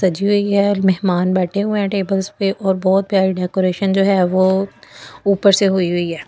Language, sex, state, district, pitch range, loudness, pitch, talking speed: Hindi, female, Delhi, New Delhi, 185-200 Hz, -16 LUFS, 190 Hz, 200 wpm